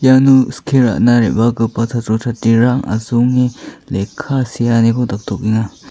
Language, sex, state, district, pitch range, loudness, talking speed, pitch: Garo, male, Meghalaya, South Garo Hills, 115-125 Hz, -14 LUFS, 100 wpm, 120 Hz